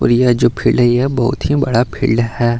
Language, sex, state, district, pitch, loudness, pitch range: Hindi, male, Bihar, Gaya, 120 Hz, -14 LUFS, 120-125 Hz